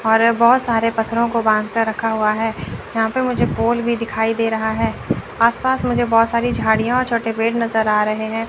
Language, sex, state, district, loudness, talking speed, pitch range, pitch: Hindi, female, Chandigarh, Chandigarh, -18 LUFS, 225 wpm, 220-235 Hz, 225 Hz